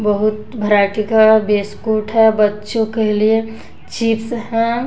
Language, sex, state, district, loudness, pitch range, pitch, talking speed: Hindi, female, Bihar, West Champaran, -15 LUFS, 210-225 Hz, 220 Hz, 125 wpm